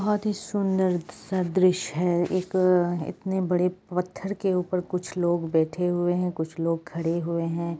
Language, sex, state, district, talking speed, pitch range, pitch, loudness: Hindi, female, West Bengal, Jalpaiguri, 175 wpm, 170-185 Hz, 180 Hz, -26 LUFS